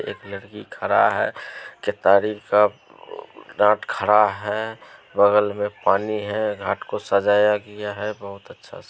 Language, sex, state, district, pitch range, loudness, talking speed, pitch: Maithili, male, Bihar, Supaul, 100-105 Hz, -21 LUFS, 130 wpm, 105 Hz